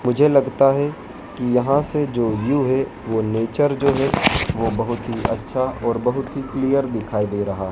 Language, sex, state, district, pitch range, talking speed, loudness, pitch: Hindi, male, Madhya Pradesh, Dhar, 115-140 Hz, 195 wpm, -20 LUFS, 125 Hz